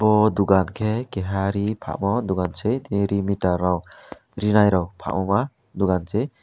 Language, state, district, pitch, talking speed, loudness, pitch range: Kokborok, Tripura, West Tripura, 100 Hz, 140 wpm, -22 LUFS, 95-110 Hz